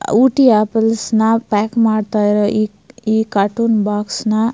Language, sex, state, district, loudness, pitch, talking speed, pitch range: Kannada, female, Karnataka, Mysore, -15 LUFS, 220 Hz, 160 wpm, 210-225 Hz